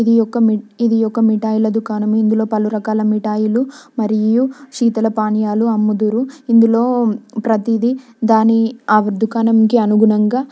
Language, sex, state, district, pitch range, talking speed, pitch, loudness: Telugu, female, Telangana, Nalgonda, 215-230 Hz, 125 wpm, 225 Hz, -15 LUFS